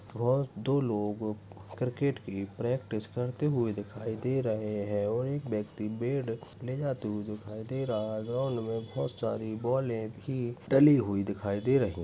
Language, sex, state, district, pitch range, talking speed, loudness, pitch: Hindi, male, Chhattisgarh, Bastar, 105-130 Hz, 175 wpm, -32 LUFS, 115 Hz